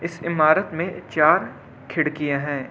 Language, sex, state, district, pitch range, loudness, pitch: Hindi, male, Delhi, New Delhi, 145-170 Hz, -21 LUFS, 155 Hz